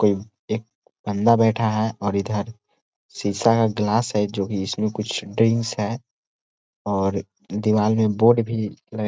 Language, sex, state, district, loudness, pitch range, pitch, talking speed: Hindi, male, Chhattisgarh, Korba, -22 LUFS, 105-115 Hz, 110 Hz, 145 wpm